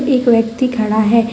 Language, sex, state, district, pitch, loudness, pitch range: Hindi, female, Jharkhand, Deoghar, 230 Hz, -14 LUFS, 225-250 Hz